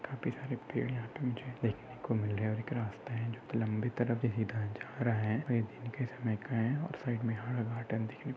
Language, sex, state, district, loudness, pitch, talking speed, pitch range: Hindi, male, Maharashtra, Chandrapur, -36 LUFS, 115 Hz, 215 wpm, 110-125 Hz